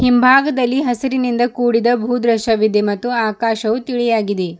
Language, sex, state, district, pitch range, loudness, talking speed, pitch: Kannada, female, Karnataka, Bidar, 220-245 Hz, -16 LUFS, 105 wpm, 240 Hz